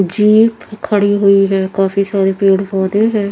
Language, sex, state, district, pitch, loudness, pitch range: Hindi, female, Haryana, Charkhi Dadri, 200 Hz, -13 LUFS, 195-210 Hz